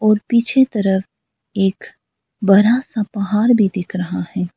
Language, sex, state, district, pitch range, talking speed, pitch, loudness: Hindi, female, Arunachal Pradesh, Lower Dibang Valley, 190-230 Hz, 145 wpm, 205 Hz, -17 LUFS